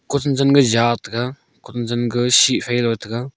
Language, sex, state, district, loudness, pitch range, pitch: Wancho, male, Arunachal Pradesh, Longding, -17 LUFS, 120-135 Hz, 120 Hz